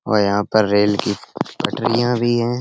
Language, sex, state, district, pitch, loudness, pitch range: Hindi, male, Uttar Pradesh, Etah, 105 Hz, -18 LUFS, 100-120 Hz